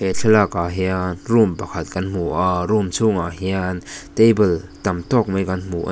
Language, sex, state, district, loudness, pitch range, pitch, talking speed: Mizo, male, Mizoram, Aizawl, -19 LUFS, 90-105 Hz, 95 Hz, 180 wpm